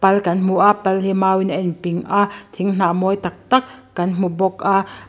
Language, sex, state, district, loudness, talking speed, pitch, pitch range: Mizo, female, Mizoram, Aizawl, -18 LUFS, 235 wpm, 190 Hz, 185-195 Hz